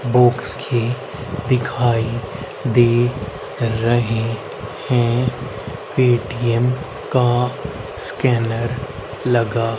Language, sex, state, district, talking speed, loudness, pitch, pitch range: Hindi, male, Haryana, Rohtak, 60 wpm, -19 LUFS, 120 Hz, 115-125 Hz